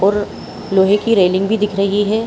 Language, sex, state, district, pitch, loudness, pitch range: Hindi, female, Chhattisgarh, Bilaspur, 205 Hz, -15 LUFS, 195-210 Hz